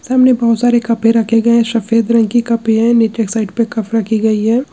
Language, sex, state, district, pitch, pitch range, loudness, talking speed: Hindi, male, Chhattisgarh, Kabirdham, 230 Hz, 225-235 Hz, -13 LUFS, 255 wpm